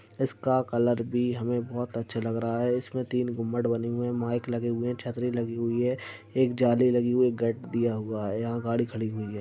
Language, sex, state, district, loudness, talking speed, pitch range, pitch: Hindi, male, Uttar Pradesh, Deoria, -28 LUFS, 240 wpm, 115-125 Hz, 120 Hz